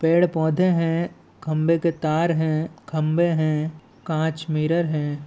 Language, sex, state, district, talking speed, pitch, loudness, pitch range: Chhattisgarhi, male, Chhattisgarh, Balrampur, 135 wpm, 160 Hz, -22 LUFS, 155-165 Hz